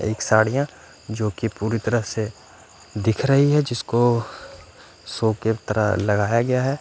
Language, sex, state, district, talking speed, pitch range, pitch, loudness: Hindi, male, Punjab, Fazilka, 140 wpm, 110-120 Hz, 110 Hz, -21 LUFS